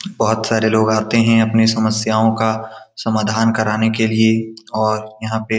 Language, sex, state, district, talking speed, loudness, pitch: Hindi, male, Bihar, Saran, 170 wpm, -16 LUFS, 110 Hz